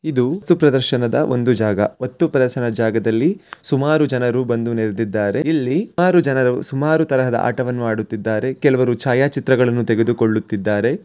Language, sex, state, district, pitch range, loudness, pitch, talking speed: Kannada, male, Karnataka, Mysore, 115-140 Hz, -18 LUFS, 125 Hz, 115 wpm